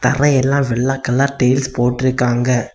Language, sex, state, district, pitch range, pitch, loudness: Tamil, male, Tamil Nadu, Kanyakumari, 125-135 Hz, 130 Hz, -16 LUFS